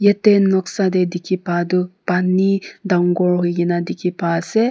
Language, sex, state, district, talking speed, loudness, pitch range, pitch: Nagamese, female, Nagaland, Kohima, 165 wpm, -18 LUFS, 175-195 Hz, 180 Hz